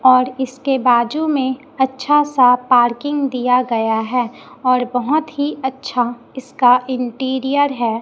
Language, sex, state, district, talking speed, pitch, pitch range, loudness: Hindi, female, Chhattisgarh, Raipur, 125 wpm, 260 Hz, 245-270 Hz, -17 LUFS